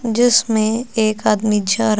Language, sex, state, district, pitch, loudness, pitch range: Hindi, female, Uttar Pradesh, Lucknow, 220 Hz, -16 LUFS, 215-230 Hz